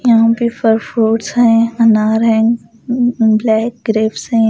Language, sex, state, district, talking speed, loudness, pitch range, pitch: Hindi, female, Delhi, New Delhi, 135 wpm, -13 LUFS, 220-235 Hz, 230 Hz